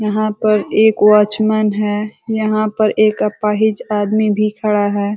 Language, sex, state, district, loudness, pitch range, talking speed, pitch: Hindi, female, Uttar Pradesh, Ghazipur, -15 LUFS, 210-215 Hz, 150 wpm, 215 Hz